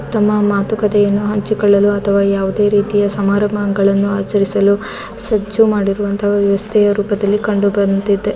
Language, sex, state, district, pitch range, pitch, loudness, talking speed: Kannada, female, Karnataka, Mysore, 200-210 Hz, 205 Hz, -14 LUFS, 95 wpm